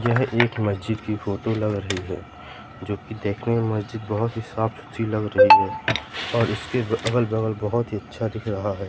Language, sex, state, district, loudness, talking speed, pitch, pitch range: Hindi, male, Madhya Pradesh, Katni, -23 LUFS, 195 wpm, 110 Hz, 105-120 Hz